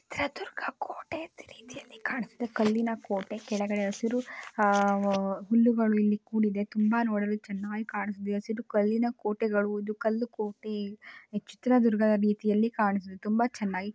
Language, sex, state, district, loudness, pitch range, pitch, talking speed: Kannada, male, Karnataka, Chamarajanagar, -29 LUFS, 205-225 Hz, 210 Hz, 115 wpm